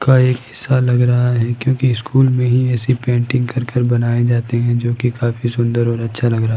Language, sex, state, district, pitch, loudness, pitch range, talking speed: Hindi, male, Rajasthan, Jaipur, 120 Hz, -16 LUFS, 120-125 Hz, 235 wpm